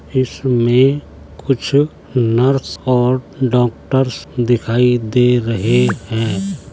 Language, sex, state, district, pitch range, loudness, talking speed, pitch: Hindi, male, Uttar Pradesh, Jalaun, 120-135 Hz, -16 LUFS, 80 wpm, 125 Hz